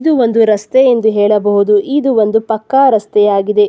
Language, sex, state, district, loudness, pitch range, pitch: Kannada, female, Karnataka, Chamarajanagar, -11 LUFS, 210-250 Hz, 220 Hz